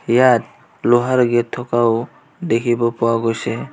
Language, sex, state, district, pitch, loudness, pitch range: Assamese, male, Assam, Kamrup Metropolitan, 120 Hz, -17 LUFS, 115-125 Hz